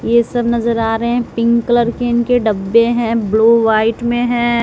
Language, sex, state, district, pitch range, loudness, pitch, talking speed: Hindi, female, Bihar, West Champaran, 225-240 Hz, -14 LUFS, 235 Hz, 205 wpm